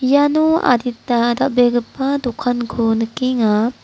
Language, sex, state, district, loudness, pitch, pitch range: Garo, female, Meghalaya, West Garo Hills, -17 LUFS, 245 Hz, 235-270 Hz